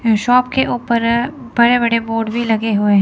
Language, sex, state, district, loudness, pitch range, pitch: Hindi, female, Chandigarh, Chandigarh, -15 LUFS, 225-245 Hz, 235 Hz